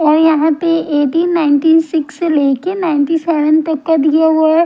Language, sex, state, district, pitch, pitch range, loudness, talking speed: Hindi, female, Himachal Pradesh, Shimla, 320 Hz, 305-325 Hz, -13 LUFS, 180 wpm